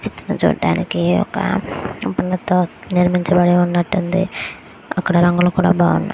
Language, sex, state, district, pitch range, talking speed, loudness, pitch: Telugu, female, Andhra Pradesh, Guntur, 175-185 Hz, 110 wpm, -17 LUFS, 180 Hz